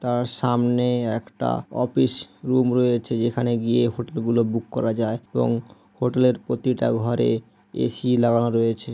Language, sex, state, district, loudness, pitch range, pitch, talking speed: Bengali, male, West Bengal, Malda, -23 LUFS, 115-125 Hz, 120 Hz, 150 wpm